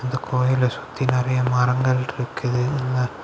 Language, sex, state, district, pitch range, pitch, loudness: Tamil, male, Tamil Nadu, Kanyakumari, 125-130 Hz, 125 Hz, -22 LUFS